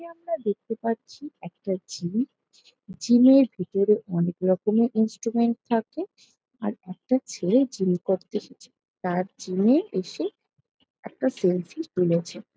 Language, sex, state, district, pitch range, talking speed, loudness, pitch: Bengali, female, West Bengal, Jalpaiguri, 185-250 Hz, 135 wpm, -25 LUFS, 215 Hz